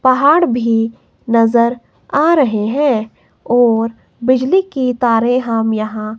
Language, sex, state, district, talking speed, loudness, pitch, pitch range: Hindi, female, Himachal Pradesh, Shimla, 115 wpm, -14 LUFS, 240 Hz, 225-260 Hz